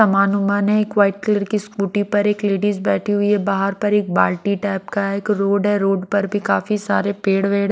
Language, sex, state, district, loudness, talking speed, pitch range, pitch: Hindi, female, Maharashtra, Mumbai Suburban, -18 LUFS, 235 wpm, 200-205 Hz, 205 Hz